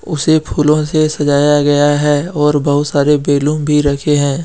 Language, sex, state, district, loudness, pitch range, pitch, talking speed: Hindi, male, Jharkhand, Deoghar, -13 LUFS, 145-150 Hz, 150 Hz, 175 wpm